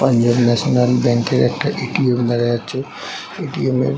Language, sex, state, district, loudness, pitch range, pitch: Bengali, male, West Bengal, Jhargram, -17 LUFS, 120-125 Hz, 120 Hz